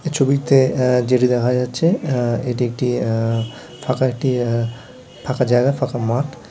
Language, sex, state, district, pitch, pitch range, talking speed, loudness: Bengali, male, West Bengal, Malda, 125 Hz, 120-130 Hz, 145 wpm, -18 LUFS